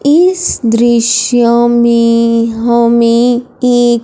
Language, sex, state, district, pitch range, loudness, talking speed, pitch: Hindi, female, Punjab, Fazilka, 230-245 Hz, -10 LUFS, 75 wpm, 235 Hz